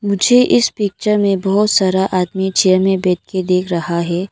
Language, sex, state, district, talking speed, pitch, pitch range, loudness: Hindi, female, Arunachal Pradesh, Longding, 195 wpm, 190 Hz, 185-200 Hz, -15 LUFS